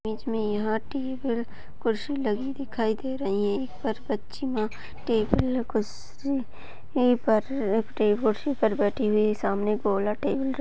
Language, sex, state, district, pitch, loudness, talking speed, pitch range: Hindi, female, Chhattisgarh, Balrampur, 225 Hz, -27 LUFS, 135 wpm, 215-260 Hz